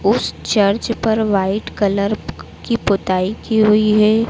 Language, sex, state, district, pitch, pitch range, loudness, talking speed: Hindi, female, Madhya Pradesh, Dhar, 210 Hz, 200-220 Hz, -17 LUFS, 140 wpm